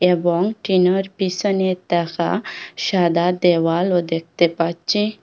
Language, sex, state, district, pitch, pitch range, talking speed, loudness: Bengali, female, Assam, Hailakandi, 180 Hz, 170-190 Hz, 105 wpm, -19 LUFS